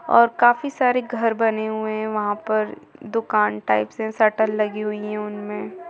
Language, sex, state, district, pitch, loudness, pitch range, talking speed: Hindi, female, Jharkhand, Sahebganj, 220 Hz, -21 LUFS, 210-230 Hz, 175 wpm